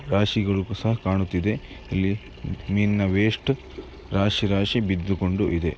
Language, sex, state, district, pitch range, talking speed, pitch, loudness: Kannada, male, Karnataka, Mysore, 95-105 Hz, 105 wpm, 100 Hz, -24 LUFS